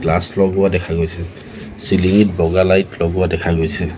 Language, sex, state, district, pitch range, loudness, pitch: Assamese, male, Assam, Sonitpur, 85-95 Hz, -16 LUFS, 90 Hz